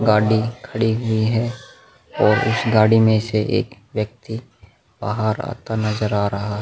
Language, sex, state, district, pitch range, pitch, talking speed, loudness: Hindi, male, Bihar, Vaishali, 105-115 Hz, 110 Hz, 155 wpm, -19 LUFS